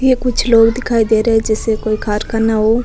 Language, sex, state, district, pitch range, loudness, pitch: Rajasthani, female, Rajasthan, Nagaur, 220-235 Hz, -14 LUFS, 225 Hz